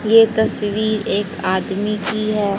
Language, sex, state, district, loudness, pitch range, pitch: Hindi, female, Haryana, Jhajjar, -17 LUFS, 200-215 Hz, 210 Hz